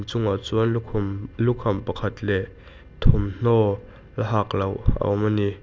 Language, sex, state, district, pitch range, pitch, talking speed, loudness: Mizo, male, Mizoram, Aizawl, 100-115 Hz, 105 Hz, 150 wpm, -24 LUFS